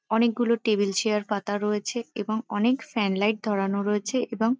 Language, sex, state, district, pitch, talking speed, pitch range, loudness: Bengali, female, West Bengal, Kolkata, 215 Hz, 170 wpm, 205-230 Hz, -26 LUFS